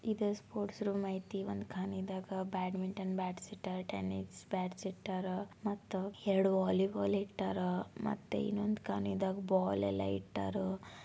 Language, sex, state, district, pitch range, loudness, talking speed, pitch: Kannada, female, Karnataka, Belgaum, 180-200 Hz, -37 LUFS, 130 wpm, 190 Hz